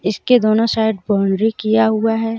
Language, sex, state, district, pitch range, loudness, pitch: Hindi, female, Jharkhand, Deoghar, 210-225 Hz, -16 LUFS, 220 Hz